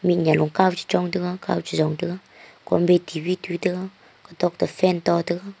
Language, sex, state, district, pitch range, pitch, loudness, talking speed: Wancho, female, Arunachal Pradesh, Longding, 170-185 Hz, 180 Hz, -22 LUFS, 180 wpm